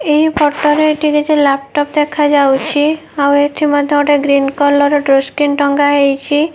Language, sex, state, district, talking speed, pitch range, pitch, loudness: Odia, female, Odisha, Nuapada, 155 wpm, 285-300 Hz, 290 Hz, -12 LUFS